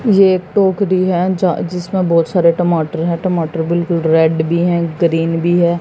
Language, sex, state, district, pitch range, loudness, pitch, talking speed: Hindi, female, Haryana, Jhajjar, 165-185 Hz, -14 LUFS, 170 Hz, 175 wpm